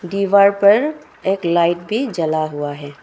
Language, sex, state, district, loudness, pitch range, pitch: Hindi, female, Arunachal Pradesh, Longding, -17 LUFS, 155-200 Hz, 180 Hz